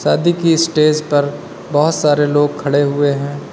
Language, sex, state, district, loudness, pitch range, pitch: Hindi, male, Uttar Pradesh, Lalitpur, -15 LUFS, 145-160 Hz, 145 Hz